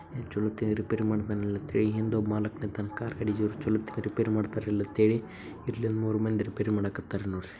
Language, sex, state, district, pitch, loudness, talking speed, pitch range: Kannada, male, Karnataka, Bijapur, 110 Hz, -30 LUFS, 165 wpm, 105-110 Hz